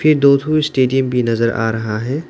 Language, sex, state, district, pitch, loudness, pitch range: Hindi, male, Arunachal Pradesh, Lower Dibang Valley, 130 Hz, -16 LUFS, 115-145 Hz